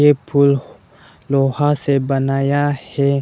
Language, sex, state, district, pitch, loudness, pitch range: Hindi, male, Arunachal Pradesh, Lower Dibang Valley, 140 Hz, -17 LUFS, 135-145 Hz